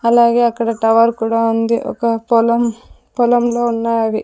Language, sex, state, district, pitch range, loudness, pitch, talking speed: Telugu, female, Andhra Pradesh, Sri Satya Sai, 230-235 Hz, -15 LUFS, 230 Hz, 125 wpm